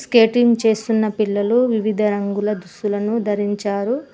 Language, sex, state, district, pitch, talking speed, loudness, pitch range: Telugu, female, Telangana, Mahabubabad, 215 Hz, 100 wpm, -19 LUFS, 205-230 Hz